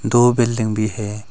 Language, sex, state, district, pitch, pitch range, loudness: Hindi, male, Arunachal Pradesh, Longding, 110 Hz, 105-120 Hz, -18 LUFS